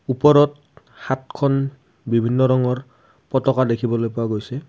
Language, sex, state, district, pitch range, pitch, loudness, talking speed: Assamese, male, Assam, Kamrup Metropolitan, 120-140 Hz, 130 Hz, -20 LUFS, 100 wpm